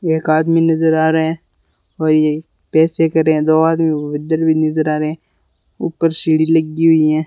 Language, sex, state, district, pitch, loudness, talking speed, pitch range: Hindi, male, Rajasthan, Bikaner, 160 Hz, -15 LUFS, 180 wpm, 155-160 Hz